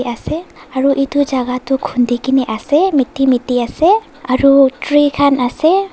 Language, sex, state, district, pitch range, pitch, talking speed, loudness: Nagamese, female, Nagaland, Dimapur, 250-290 Hz, 275 Hz, 150 wpm, -14 LUFS